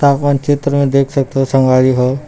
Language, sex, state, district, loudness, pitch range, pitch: Chhattisgarhi, male, Chhattisgarh, Rajnandgaon, -13 LUFS, 130-140 Hz, 135 Hz